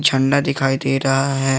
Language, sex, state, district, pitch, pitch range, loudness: Hindi, male, Jharkhand, Garhwa, 135 Hz, 135-140 Hz, -18 LUFS